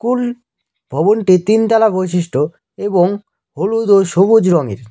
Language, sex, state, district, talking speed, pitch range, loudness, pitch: Bengali, male, West Bengal, Cooch Behar, 100 wpm, 175-220 Hz, -14 LUFS, 200 Hz